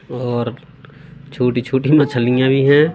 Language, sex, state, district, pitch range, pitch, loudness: Hindi, male, Madhya Pradesh, Katni, 125-150 Hz, 135 Hz, -16 LUFS